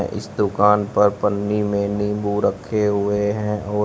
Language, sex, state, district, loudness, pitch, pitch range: Hindi, male, Uttar Pradesh, Shamli, -20 LUFS, 105 Hz, 100-105 Hz